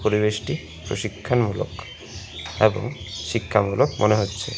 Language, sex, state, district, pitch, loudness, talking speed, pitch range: Bengali, male, West Bengal, Alipurduar, 105 Hz, -23 LUFS, 80 wpm, 95-110 Hz